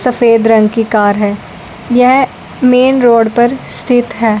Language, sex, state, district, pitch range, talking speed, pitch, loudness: Hindi, male, Punjab, Fazilka, 225-250 Hz, 150 wpm, 235 Hz, -10 LUFS